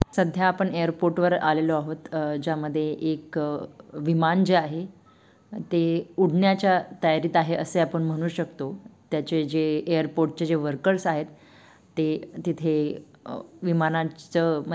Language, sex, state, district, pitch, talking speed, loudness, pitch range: Marathi, female, Maharashtra, Dhule, 165 Hz, 115 wpm, -25 LUFS, 155-170 Hz